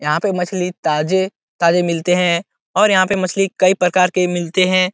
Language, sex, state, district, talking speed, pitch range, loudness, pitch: Hindi, male, Uttar Pradesh, Etah, 195 wpm, 175-185 Hz, -16 LUFS, 180 Hz